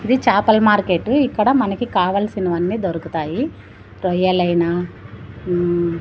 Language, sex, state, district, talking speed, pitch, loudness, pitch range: Telugu, female, Andhra Pradesh, Sri Satya Sai, 100 wpm, 185 Hz, -18 LUFS, 170-215 Hz